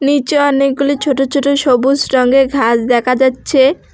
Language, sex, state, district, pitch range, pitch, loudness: Bengali, female, West Bengal, Alipurduar, 255-280 Hz, 270 Hz, -12 LUFS